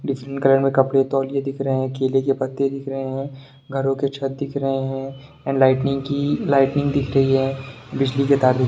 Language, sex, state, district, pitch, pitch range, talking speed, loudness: Hindi, male, Bihar, Sitamarhi, 135 Hz, 135-140 Hz, 215 wpm, -21 LUFS